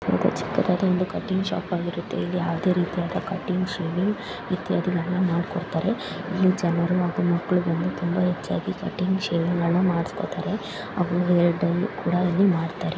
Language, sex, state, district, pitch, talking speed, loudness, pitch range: Kannada, female, Karnataka, Dharwad, 180 Hz, 130 wpm, -24 LUFS, 170-185 Hz